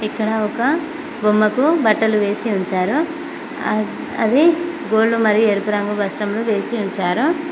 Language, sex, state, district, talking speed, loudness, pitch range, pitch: Telugu, female, Telangana, Mahabubabad, 130 wpm, -18 LUFS, 210-305 Hz, 220 Hz